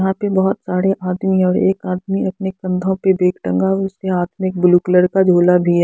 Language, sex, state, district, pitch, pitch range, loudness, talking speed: Hindi, female, Haryana, Jhajjar, 185 Hz, 180-190 Hz, -16 LUFS, 235 wpm